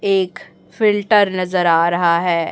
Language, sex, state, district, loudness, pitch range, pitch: Hindi, female, Chhattisgarh, Raipur, -16 LUFS, 170-205 Hz, 185 Hz